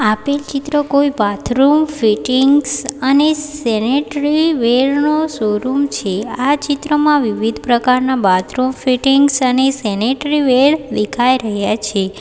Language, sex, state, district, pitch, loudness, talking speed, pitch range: Gujarati, female, Gujarat, Valsad, 260 Hz, -15 LUFS, 115 wpm, 225-285 Hz